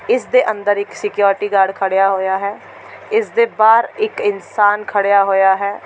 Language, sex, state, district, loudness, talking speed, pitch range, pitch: Punjabi, female, Delhi, New Delhi, -15 LUFS, 175 wpm, 195-235 Hz, 205 Hz